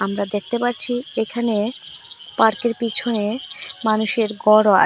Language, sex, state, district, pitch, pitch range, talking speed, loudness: Bengali, female, Assam, Hailakandi, 225 Hz, 215-235 Hz, 110 wpm, -20 LUFS